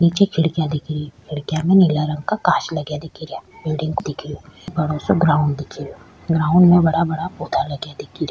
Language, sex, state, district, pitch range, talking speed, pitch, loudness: Rajasthani, female, Rajasthan, Churu, 150-170 Hz, 175 wpm, 160 Hz, -19 LUFS